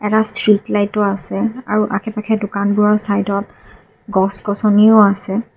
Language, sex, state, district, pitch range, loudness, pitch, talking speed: Assamese, female, Assam, Kamrup Metropolitan, 200-215 Hz, -15 LUFS, 210 Hz, 130 wpm